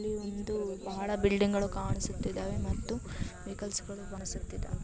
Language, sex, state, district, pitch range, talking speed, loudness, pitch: Kannada, female, Karnataka, Shimoga, 125-205 Hz, 150 wpm, -35 LUFS, 200 Hz